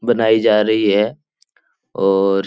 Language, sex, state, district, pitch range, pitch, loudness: Hindi, male, Bihar, Jahanabad, 100-110 Hz, 105 Hz, -15 LUFS